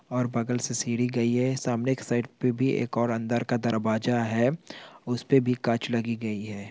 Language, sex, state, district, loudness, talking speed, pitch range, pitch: Hindi, male, Chhattisgarh, Rajnandgaon, -27 LUFS, 215 wpm, 115-125 Hz, 120 Hz